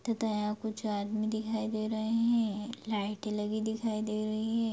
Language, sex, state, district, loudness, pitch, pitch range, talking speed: Hindi, female, Bihar, Lakhisarai, -33 LUFS, 220 Hz, 215-225 Hz, 175 wpm